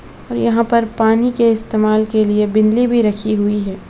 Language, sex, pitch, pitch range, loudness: Hindi, female, 215 Hz, 210-230 Hz, -15 LUFS